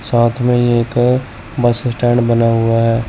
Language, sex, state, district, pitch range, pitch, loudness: Hindi, male, Chandigarh, Chandigarh, 115-120 Hz, 120 Hz, -14 LUFS